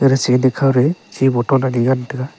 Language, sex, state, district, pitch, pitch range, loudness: Wancho, male, Arunachal Pradesh, Longding, 130 Hz, 125-135 Hz, -16 LUFS